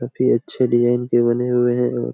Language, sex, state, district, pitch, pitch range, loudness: Hindi, male, Jharkhand, Jamtara, 120 Hz, 120-125 Hz, -18 LUFS